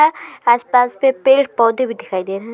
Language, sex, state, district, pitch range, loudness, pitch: Hindi, female, Uttar Pradesh, Jalaun, 230-270 Hz, -16 LUFS, 245 Hz